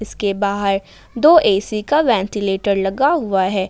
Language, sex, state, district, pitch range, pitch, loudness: Hindi, female, Jharkhand, Ranchi, 195-230 Hz, 200 Hz, -17 LUFS